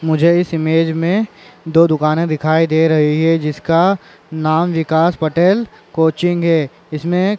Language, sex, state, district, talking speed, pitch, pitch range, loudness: Chhattisgarhi, male, Chhattisgarh, Raigarh, 140 wpm, 165 Hz, 160-175 Hz, -15 LUFS